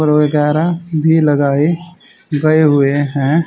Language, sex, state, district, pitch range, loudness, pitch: Hindi, male, Haryana, Charkhi Dadri, 145-165 Hz, -14 LUFS, 155 Hz